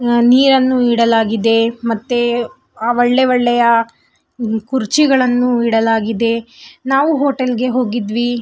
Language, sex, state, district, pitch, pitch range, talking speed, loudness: Kannada, female, Karnataka, Belgaum, 240 Hz, 230-255 Hz, 80 wpm, -14 LUFS